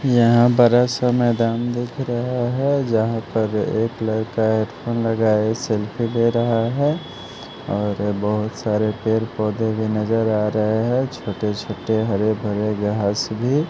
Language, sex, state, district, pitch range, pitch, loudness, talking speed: Hindi, male, Haryana, Jhajjar, 105-120 Hz, 110 Hz, -20 LUFS, 140 wpm